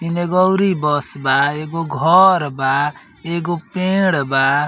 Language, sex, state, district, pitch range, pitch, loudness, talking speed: Bhojpuri, male, Uttar Pradesh, Ghazipur, 145-180 Hz, 165 Hz, -16 LUFS, 130 wpm